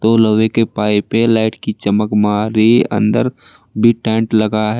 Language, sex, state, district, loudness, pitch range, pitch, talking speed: Hindi, male, Uttar Pradesh, Saharanpur, -14 LUFS, 105-115 Hz, 110 Hz, 175 wpm